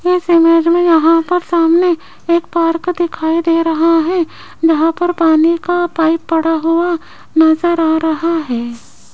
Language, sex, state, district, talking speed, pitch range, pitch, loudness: Hindi, female, Rajasthan, Jaipur, 150 wpm, 325-345 Hz, 330 Hz, -13 LUFS